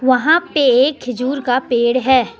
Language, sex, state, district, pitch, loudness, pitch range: Hindi, female, Jharkhand, Deoghar, 255 Hz, -15 LUFS, 250-275 Hz